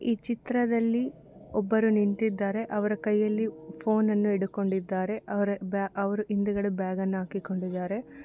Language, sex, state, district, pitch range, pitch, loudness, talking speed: Kannada, female, Karnataka, Bellary, 195-220 Hz, 205 Hz, -28 LUFS, 125 wpm